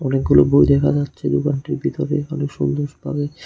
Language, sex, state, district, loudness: Bengali, male, Tripura, West Tripura, -19 LUFS